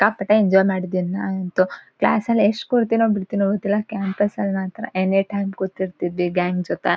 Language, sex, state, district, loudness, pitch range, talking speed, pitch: Kannada, female, Karnataka, Shimoga, -21 LUFS, 185-210 Hz, 155 wpm, 195 Hz